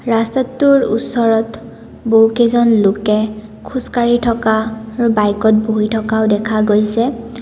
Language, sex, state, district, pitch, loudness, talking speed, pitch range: Assamese, female, Assam, Kamrup Metropolitan, 225 Hz, -14 LUFS, 95 wpm, 215-235 Hz